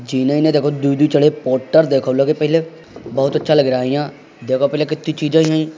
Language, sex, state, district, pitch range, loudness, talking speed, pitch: Hindi, male, Uttar Pradesh, Muzaffarnagar, 135-155 Hz, -16 LUFS, 155 wpm, 145 Hz